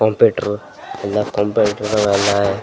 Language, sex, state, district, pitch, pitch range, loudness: Kannada, male, Karnataka, Raichur, 105 Hz, 100-105 Hz, -17 LUFS